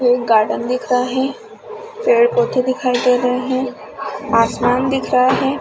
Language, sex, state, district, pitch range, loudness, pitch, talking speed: Hindi, female, Chhattisgarh, Balrampur, 250-270 Hz, -16 LUFS, 255 Hz, 170 wpm